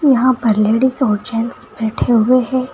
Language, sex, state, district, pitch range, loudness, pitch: Hindi, female, Uttar Pradesh, Saharanpur, 225-255 Hz, -15 LUFS, 245 Hz